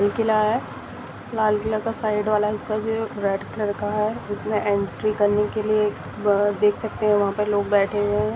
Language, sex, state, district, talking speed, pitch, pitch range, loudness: Hindi, female, Jharkhand, Sahebganj, 170 wpm, 210 Hz, 205-215 Hz, -22 LUFS